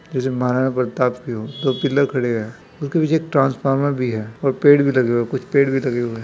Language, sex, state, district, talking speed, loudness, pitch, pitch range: Hindi, male, Bihar, Begusarai, 240 wpm, -19 LUFS, 130 Hz, 120-140 Hz